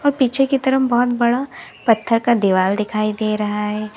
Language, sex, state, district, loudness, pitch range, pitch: Hindi, female, Uttar Pradesh, Lalitpur, -18 LUFS, 210-260 Hz, 230 Hz